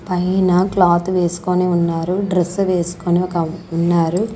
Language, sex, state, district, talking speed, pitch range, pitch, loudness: Telugu, female, Andhra Pradesh, Sri Satya Sai, 110 wpm, 175-185 Hz, 180 Hz, -17 LUFS